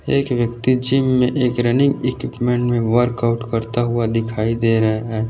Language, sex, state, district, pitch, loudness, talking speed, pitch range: Hindi, male, Maharashtra, Aurangabad, 120 Hz, -18 LUFS, 180 wpm, 115-125 Hz